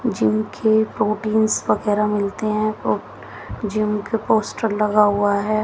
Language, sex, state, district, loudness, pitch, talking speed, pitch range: Hindi, female, Haryana, Jhajjar, -20 LUFS, 210 Hz, 140 wpm, 200-215 Hz